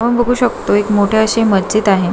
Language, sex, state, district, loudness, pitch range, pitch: Marathi, female, Maharashtra, Solapur, -13 LUFS, 200-230 Hz, 215 Hz